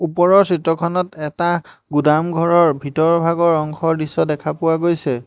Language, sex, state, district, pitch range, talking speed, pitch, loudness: Assamese, male, Assam, Hailakandi, 155-170 Hz, 115 wpm, 165 Hz, -17 LUFS